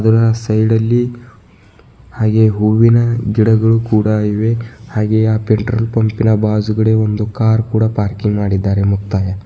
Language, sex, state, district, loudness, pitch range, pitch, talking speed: Kannada, male, Karnataka, Bidar, -14 LUFS, 105-115 Hz, 110 Hz, 135 wpm